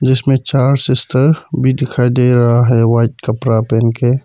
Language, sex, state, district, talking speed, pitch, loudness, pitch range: Hindi, male, Arunachal Pradesh, Papum Pare, 170 wpm, 125 Hz, -13 LUFS, 120-130 Hz